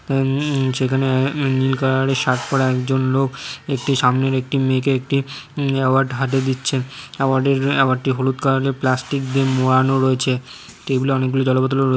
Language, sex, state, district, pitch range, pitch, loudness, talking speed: Bengali, male, West Bengal, Jhargram, 130-135 Hz, 135 Hz, -19 LUFS, 185 wpm